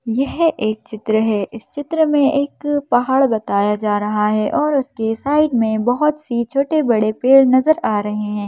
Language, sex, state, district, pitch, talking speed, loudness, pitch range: Hindi, female, Madhya Pradesh, Bhopal, 245 Hz, 175 wpm, -17 LUFS, 215-285 Hz